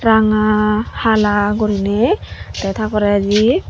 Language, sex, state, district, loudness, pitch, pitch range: Chakma, female, Tripura, Dhalai, -15 LUFS, 215 Hz, 205-215 Hz